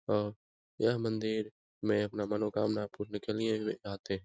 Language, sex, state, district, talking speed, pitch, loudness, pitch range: Hindi, male, Bihar, Lakhisarai, 185 wpm, 105 Hz, -34 LUFS, 105-110 Hz